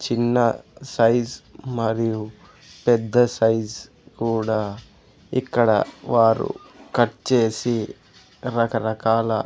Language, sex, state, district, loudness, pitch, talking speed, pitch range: Telugu, male, Andhra Pradesh, Sri Satya Sai, -21 LUFS, 115 Hz, 70 wpm, 110-120 Hz